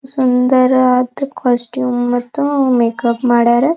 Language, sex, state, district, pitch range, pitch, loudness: Kannada, female, Karnataka, Dharwad, 240-260 Hz, 250 Hz, -14 LUFS